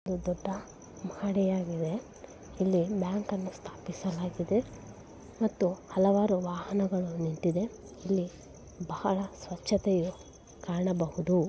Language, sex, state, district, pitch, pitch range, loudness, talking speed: Kannada, female, Karnataka, Bellary, 185 Hz, 175-195 Hz, -31 LUFS, 80 wpm